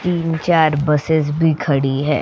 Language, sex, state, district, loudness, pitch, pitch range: Hindi, female, Goa, North and South Goa, -17 LUFS, 155 Hz, 145-165 Hz